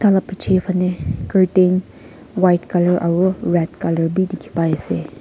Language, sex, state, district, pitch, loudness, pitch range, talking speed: Nagamese, female, Nagaland, Kohima, 185 Hz, -18 LUFS, 175-190 Hz, 150 wpm